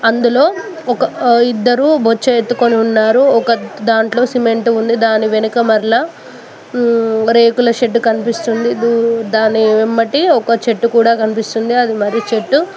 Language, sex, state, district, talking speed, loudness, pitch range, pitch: Telugu, female, Telangana, Mahabubabad, 130 wpm, -13 LUFS, 225-240 Hz, 230 Hz